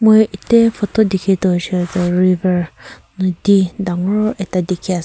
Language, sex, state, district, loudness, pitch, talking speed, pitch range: Nagamese, female, Nagaland, Kohima, -16 LUFS, 190 Hz, 165 wpm, 180-205 Hz